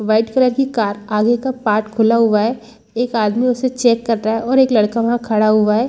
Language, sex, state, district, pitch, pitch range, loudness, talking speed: Hindi, female, Chhattisgarh, Rajnandgaon, 230 Hz, 215-245 Hz, -16 LUFS, 245 wpm